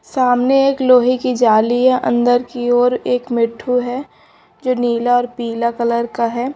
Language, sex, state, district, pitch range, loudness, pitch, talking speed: Hindi, female, Punjab, Pathankot, 235-255 Hz, -16 LUFS, 245 Hz, 175 wpm